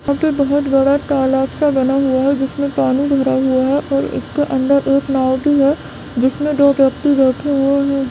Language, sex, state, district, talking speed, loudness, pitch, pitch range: Hindi, female, Bihar, Darbhanga, 200 wpm, -15 LUFS, 275 Hz, 265-285 Hz